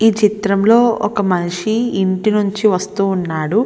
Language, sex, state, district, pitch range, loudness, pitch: Telugu, female, Andhra Pradesh, Visakhapatnam, 185-220 Hz, -16 LUFS, 205 Hz